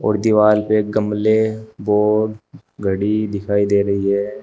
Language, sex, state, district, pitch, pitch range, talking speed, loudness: Hindi, male, Uttar Pradesh, Shamli, 105 Hz, 100-110 Hz, 135 wpm, -18 LUFS